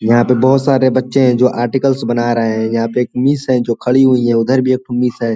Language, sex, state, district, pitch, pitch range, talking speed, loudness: Hindi, male, Uttar Pradesh, Ghazipur, 125 Hz, 120-130 Hz, 270 wpm, -13 LUFS